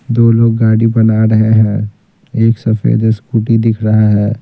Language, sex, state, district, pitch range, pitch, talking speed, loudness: Hindi, male, Bihar, Patna, 110-115 Hz, 110 Hz, 165 wpm, -11 LUFS